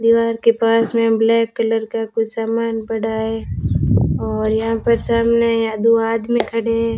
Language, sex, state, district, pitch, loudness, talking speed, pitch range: Hindi, female, Rajasthan, Bikaner, 230 Hz, -18 LUFS, 170 wpm, 225-230 Hz